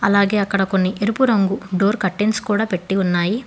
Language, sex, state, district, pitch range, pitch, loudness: Telugu, female, Telangana, Hyderabad, 190-215 Hz, 200 Hz, -18 LUFS